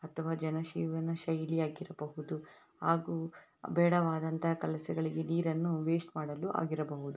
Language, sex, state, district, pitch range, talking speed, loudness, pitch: Kannada, female, Karnataka, Raichur, 155-165 Hz, 85 wpm, -35 LUFS, 160 Hz